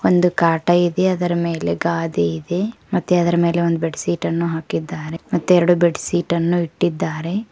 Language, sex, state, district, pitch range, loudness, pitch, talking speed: Kannada, female, Karnataka, Koppal, 165-175 Hz, -19 LUFS, 170 Hz, 150 wpm